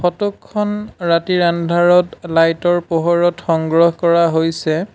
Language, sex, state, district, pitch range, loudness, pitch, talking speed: Assamese, male, Assam, Sonitpur, 165-175 Hz, -16 LUFS, 170 Hz, 120 wpm